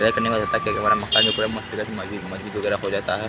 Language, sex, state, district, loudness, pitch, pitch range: Hindi, male, Bihar, Araria, -22 LUFS, 105 Hz, 100-110 Hz